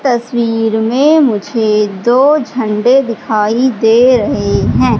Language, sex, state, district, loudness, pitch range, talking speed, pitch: Hindi, female, Madhya Pradesh, Katni, -11 LUFS, 220-260 Hz, 110 wpm, 235 Hz